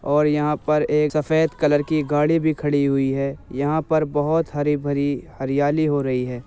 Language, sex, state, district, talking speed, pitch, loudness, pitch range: Hindi, male, Uttar Pradesh, Jyotiba Phule Nagar, 195 wpm, 150 Hz, -21 LUFS, 140-155 Hz